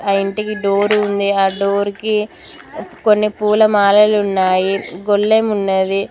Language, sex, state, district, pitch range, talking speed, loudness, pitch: Telugu, female, Telangana, Mahabubabad, 195-210 Hz, 110 wpm, -15 LUFS, 205 Hz